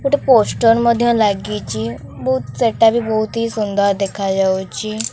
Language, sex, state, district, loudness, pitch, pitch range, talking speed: Odia, female, Odisha, Khordha, -16 LUFS, 210 Hz, 195-230 Hz, 115 wpm